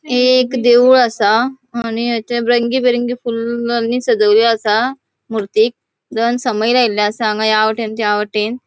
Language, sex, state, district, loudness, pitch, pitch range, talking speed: Konkani, female, Goa, North and South Goa, -15 LUFS, 235 Hz, 220-250 Hz, 145 wpm